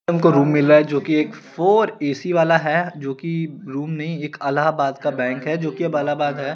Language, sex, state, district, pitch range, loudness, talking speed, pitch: Hindi, male, Chandigarh, Chandigarh, 145-165 Hz, -19 LUFS, 200 wpm, 150 Hz